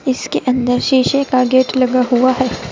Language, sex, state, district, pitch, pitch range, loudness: Hindi, female, Uttar Pradesh, Saharanpur, 255 Hz, 250-260 Hz, -14 LUFS